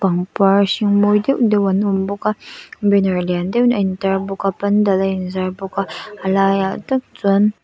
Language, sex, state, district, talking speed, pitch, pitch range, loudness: Mizo, female, Mizoram, Aizawl, 210 wpm, 195 Hz, 195-205 Hz, -17 LUFS